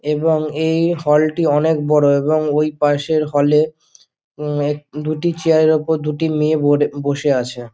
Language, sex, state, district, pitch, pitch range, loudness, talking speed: Bengali, male, West Bengal, Dakshin Dinajpur, 150 Hz, 145-155 Hz, -17 LUFS, 145 wpm